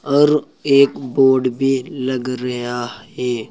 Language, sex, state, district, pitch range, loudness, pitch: Hindi, male, Uttar Pradesh, Saharanpur, 125-140 Hz, -17 LUFS, 130 Hz